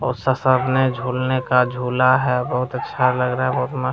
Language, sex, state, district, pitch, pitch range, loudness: Hindi, male, Bihar, Jamui, 125 Hz, 125-130 Hz, -19 LUFS